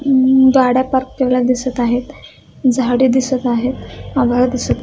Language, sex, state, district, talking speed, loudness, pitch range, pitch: Marathi, female, Maharashtra, Dhule, 135 wpm, -15 LUFS, 250-260 Hz, 255 Hz